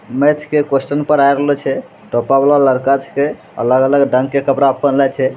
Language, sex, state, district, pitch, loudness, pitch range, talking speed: Angika, male, Bihar, Bhagalpur, 140 Hz, -14 LUFS, 135-145 Hz, 200 wpm